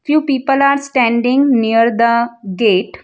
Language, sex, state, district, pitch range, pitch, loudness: English, female, Gujarat, Valsad, 230-275 Hz, 240 Hz, -14 LUFS